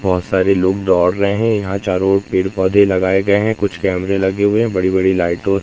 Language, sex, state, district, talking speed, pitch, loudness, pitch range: Hindi, male, Madhya Pradesh, Katni, 245 wpm, 95 Hz, -15 LUFS, 95-100 Hz